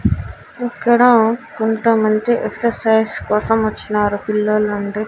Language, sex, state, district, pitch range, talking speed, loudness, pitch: Telugu, female, Andhra Pradesh, Annamaya, 210-235 Hz, 85 wpm, -16 LUFS, 220 Hz